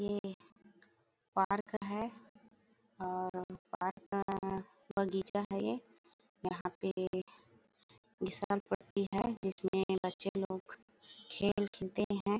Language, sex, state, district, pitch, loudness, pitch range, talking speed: Hindi, female, Chhattisgarh, Bilaspur, 195 Hz, -38 LUFS, 185-205 Hz, 100 wpm